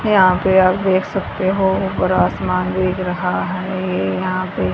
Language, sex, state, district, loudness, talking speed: Hindi, female, Haryana, Rohtak, -17 LUFS, 175 wpm